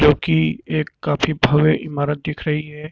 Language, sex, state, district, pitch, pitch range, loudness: Hindi, male, Uttar Pradesh, Lucknow, 150 Hz, 145-155 Hz, -19 LUFS